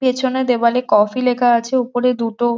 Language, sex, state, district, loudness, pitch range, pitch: Bengali, female, West Bengal, Jhargram, -16 LUFS, 235-255 Hz, 245 Hz